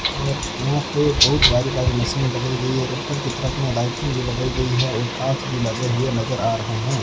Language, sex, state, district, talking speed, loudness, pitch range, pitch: Hindi, male, Rajasthan, Bikaner, 130 wpm, -20 LUFS, 120-130 Hz, 125 Hz